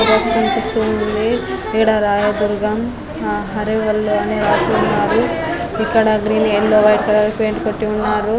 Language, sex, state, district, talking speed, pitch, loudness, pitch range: Telugu, female, Andhra Pradesh, Anantapur, 130 wpm, 215 Hz, -16 LUFS, 210-220 Hz